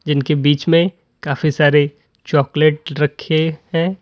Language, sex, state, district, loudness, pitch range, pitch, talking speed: Hindi, male, Uttar Pradesh, Lalitpur, -16 LUFS, 145-160 Hz, 150 Hz, 120 wpm